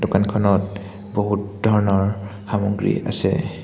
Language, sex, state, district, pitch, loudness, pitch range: Assamese, male, Assam, Hailakandi, 100 Hz, -21 LUFS, 100-105 Hz